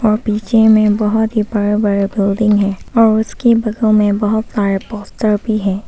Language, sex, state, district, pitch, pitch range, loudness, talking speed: Hindi, female, Arunachal Pradesh, Papum Pare, 215 Hz, 205-220 Hz, -14 LUFS, 185 wpm